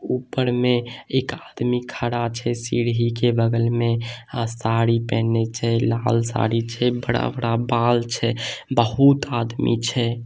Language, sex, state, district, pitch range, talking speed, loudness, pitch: Maithili, male, Bihar, Samastipur, 115-120 Hz, 135 wpm, -22 LUFS, 120 Hz